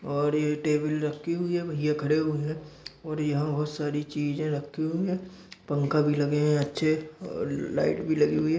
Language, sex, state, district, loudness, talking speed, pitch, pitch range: Hindi, male, Chhattisgarh, Korba, -28 LUFS, 210 wpm, 150 Hz, 150-155 Hz